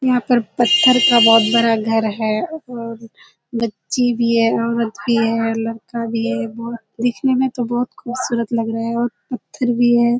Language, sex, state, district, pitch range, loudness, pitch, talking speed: Hindi, female, Bihar, Kishanganj, 225-245 Hz, -17 LUFS, 235 Hz, 180 wpm